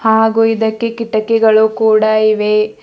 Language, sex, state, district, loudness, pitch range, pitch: Kannada, female, Karnataka, Bidar, -12 LUFS, 215-225 Hz, 220 Hz